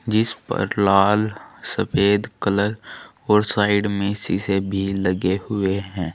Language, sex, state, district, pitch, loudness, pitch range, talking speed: Hindi, male, Uttar Pradesh, Saharanpur, 100 Hz, -21 LUFS, 95-105 Hz, 125 wpm